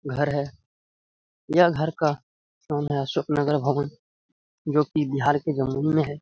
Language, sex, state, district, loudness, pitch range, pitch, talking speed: Hindi, male, Bihar, Jamui, -24 LUFS, 140-150 Hz, 145 Hz, 155 wpm